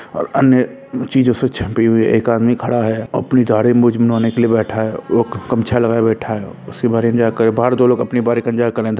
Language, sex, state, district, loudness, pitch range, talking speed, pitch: Hindi, male, Bihar, Jahanabad, -15 LUFS, 115-120 Hz, 255 wpm, 115 Hz